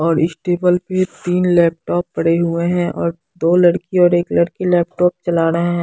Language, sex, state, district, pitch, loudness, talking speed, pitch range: Hindi, female, Bihar, Katihar, 175 Hz, -16 LUFS, 195 wpm, 170-180 Hz